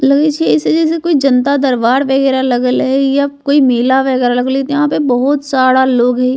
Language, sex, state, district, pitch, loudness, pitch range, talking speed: Bajjika, female, Bihar, Vaishali, 265 Hz, -12 LUFS, 250-280 Hz, 205 wpm